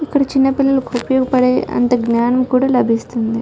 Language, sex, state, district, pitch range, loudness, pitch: Telugu, female, Telangana, Karimnagar, 240-270 Hz, -15 LUFS, 255 Hz